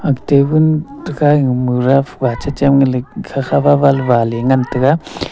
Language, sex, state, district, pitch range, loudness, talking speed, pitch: Wancho, male, Arunachal Pradesh, Longding, 125-145 Hz, -14 LUFS, 180 wpm, 140 Hz